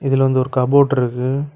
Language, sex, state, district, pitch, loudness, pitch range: Tamil, male, Tamil Nadu, Kanyakumari, 135 Hz, -16 LUFS, 125-140 Hz